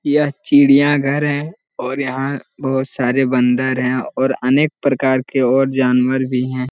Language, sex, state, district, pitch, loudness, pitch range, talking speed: Hindi, male, Jharkhand, Jamtara, 135 Hz, -16 LUFS, 130-140 Hz, 160 wpm